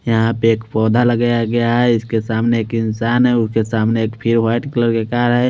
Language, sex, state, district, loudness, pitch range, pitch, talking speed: Hindi, male, Chandigarh, Chandigarh, -16 LUFS, 110-120 Hz, 115 Hz, 230 wpm